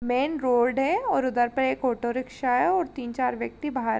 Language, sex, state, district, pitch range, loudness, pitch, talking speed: Hindi, female, Uttar Pradesh, Jalaun, 245-270 Hz, -25 LUFS, 255 Hz, 225 wpm